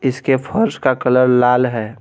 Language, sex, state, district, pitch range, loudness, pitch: Hindi, male, Jharkhand, Garhwa, 125-135 Hz, -15 LUFS, 130 Hz